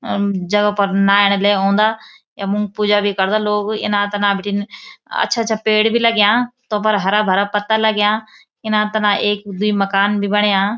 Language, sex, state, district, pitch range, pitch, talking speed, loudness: Garhwali, female, Uttarakhand, Uttarkashi, 200-215 Hz, 210 Hz, 155 wpm, -16 LUFS